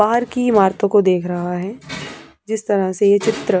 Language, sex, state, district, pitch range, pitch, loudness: Hindi, female, Punjab, Pathankot, 185-220 Hz, 200 Hz, -17 LUFS